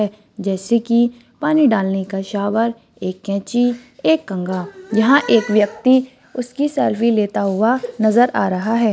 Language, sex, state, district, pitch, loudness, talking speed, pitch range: Hindi, female, Rajasthan, Churu, 225 Hz, -18 LUFS, 140 wpm, 200-245 Hz